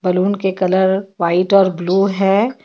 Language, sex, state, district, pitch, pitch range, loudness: Hindi, female, Jharkhand, Ranchi, 190 Hz, 185-195 Hz, -15 LUFS